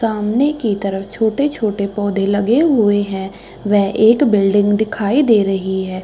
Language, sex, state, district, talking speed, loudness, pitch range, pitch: Hindi, female, Uttar Pradesh, Hamirpur, 150 wpm, -15 LUFS, 200-225 Hz, 205 Hz